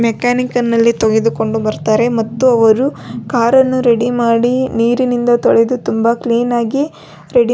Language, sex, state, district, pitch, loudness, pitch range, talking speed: Kannada, female, Karnataka, Belgaum, 235 Hz, -13 LUFS, 230-250 Hz, 120 wpm